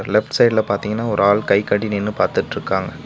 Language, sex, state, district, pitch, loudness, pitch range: Tamil, male, Tamil Nadu, Nilgiris, 105 Hz, -18 LUFS, 100-110 Hz